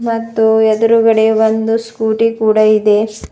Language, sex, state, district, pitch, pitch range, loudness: Kannada, female, Karnataka, Bidar, 220 Hz, 220-225 Hz, -12 LUFS